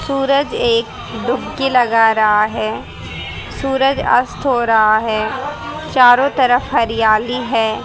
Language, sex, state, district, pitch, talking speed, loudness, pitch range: Hindi, female, Haryana, Rohtak, 230 Hz, 115 wpm, -15 LUFS, 215-270 Hz